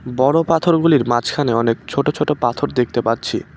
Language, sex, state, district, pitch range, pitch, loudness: Bengali, male, West Bengal, Cooch Behar, 120-150 Hz, 130 Hz, -17 LUFS